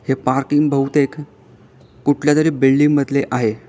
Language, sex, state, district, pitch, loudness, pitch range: Marathi, male, Maharashtra, Pune, 140 Hz, -17 LUFS, 135-145 Hz